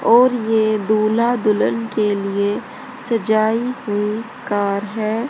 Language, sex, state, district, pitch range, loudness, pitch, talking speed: Hindi, female, Haryana, Jhajjar, 210-240 Hz, -18 LUFS, 220 Hz, 115 wpm